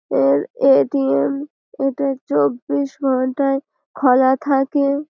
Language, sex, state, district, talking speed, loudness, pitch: Bengali, female, West Bengal, Malda, 95 wpm, -18 LUFS, 270 Hz